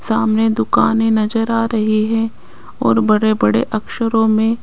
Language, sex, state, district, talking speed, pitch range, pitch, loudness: Hindi, female, Rajasthan, Jaipur, 145 wpm, 215-225 Hz, 220 Hz, -16 LUFS